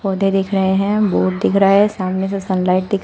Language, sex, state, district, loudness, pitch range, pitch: Hindi, female, Uttar Pradesh, Shamli, -16 LUFS, 185-195 Hz, 195 Hz